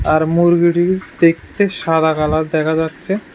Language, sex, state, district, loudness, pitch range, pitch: Bengali, male, Tripura, West Tripura, -15 LUFS, 160-175 Hz, 165 Hz